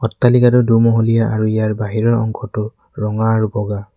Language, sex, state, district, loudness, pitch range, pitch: Assamese, male, Assam, Kamrup Metropolitan, -16 LUFS, 110-115 Hz, 110 Hz